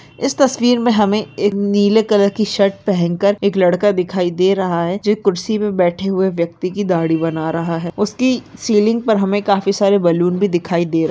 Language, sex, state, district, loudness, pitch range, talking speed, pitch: Hindi, female, Uttarakhand, Uttarkashi, -16 LUFS, 175-210 Hz, 215 wpm, 200 Hz